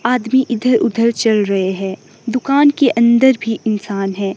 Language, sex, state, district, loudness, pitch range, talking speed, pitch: Hindi, female, Himachal Pradesh, Shimla, -15 LUFS, 200-250 Hz, 165 wpm, 230 Hz